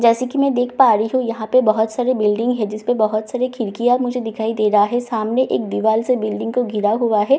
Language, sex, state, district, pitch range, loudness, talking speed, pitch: Hindi, female, Bihar, Katihar, 215-250 Hz, -18 LUFS, 250 wpm, 230 Hz